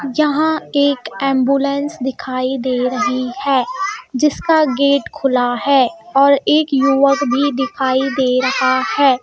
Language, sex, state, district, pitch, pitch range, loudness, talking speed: Hindi, female, Madhya Pradesh, Bhopal, 275 Hz, 255-285 Hz, -16 LUFS, 125 wpm